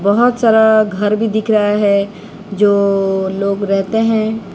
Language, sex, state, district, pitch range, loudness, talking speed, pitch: Hindi, female, Odisha, Sambalpur, 200-220 Hz, -14 LUFS, 145 wpm, 205 Hz